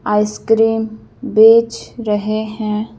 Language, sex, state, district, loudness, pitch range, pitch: Hindi, female, Madhya Pradesh, Bhopal, -15 LUFS, 215-225 Hz, 220 Hz